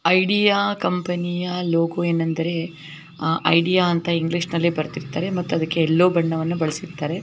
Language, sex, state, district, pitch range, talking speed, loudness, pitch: Kannada, female, Karnataka, Belgaum, 165-180 Hz, 115 wpm, -21 LUFS, 170 Hz